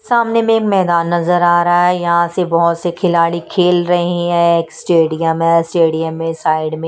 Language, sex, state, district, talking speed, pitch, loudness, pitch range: Hindi, female, Punjab, Kapurthala, 190 wpm, 170 Hz, -14 LUFS, 165-175 Hz